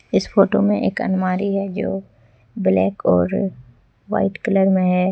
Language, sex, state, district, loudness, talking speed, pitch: Hindi, female, Jharkhand, Deoghar, -19 LUFS, 150 wpm, 180 Hz